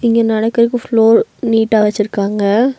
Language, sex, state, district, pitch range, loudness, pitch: Tamil, female, Tamil Nadu, Nilgiris, 210-235 Hz, -13 LUFS, 225 Hz